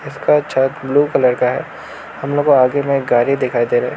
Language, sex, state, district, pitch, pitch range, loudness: Hindi, male, Arunachal Pradesh, Lower Dibang Valley, 135 Hz, 125-140 Hz, -15 LUFS